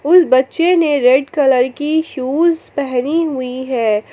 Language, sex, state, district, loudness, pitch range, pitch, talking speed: Hindi, female, Jharkhand, Palamu, -15 LUFS, 255-320 Hz, 280 Hz, 145 wpm